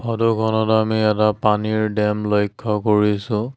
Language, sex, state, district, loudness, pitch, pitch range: Assamese, male, Assam, Sonitpur, -19 LUFS, 110 Hz, 105-110 Hz